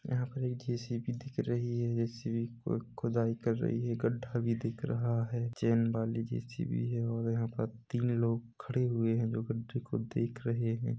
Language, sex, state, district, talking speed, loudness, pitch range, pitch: Hindi, male, Chhattisgarh, Rajnandgaon, 225 wpm, -34 LUFS, 115-120 Hz, 115 Hz